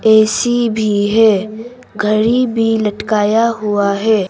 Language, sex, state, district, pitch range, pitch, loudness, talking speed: Hindi, female, Arunachal Pradesh, Papum Pare, 210-230 Hz, 220 Hz, -14 LUFS, 110 wpm